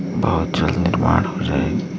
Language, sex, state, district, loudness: Hindi, male, Uttar Pradesh, Gorakhpur, -19 LUFS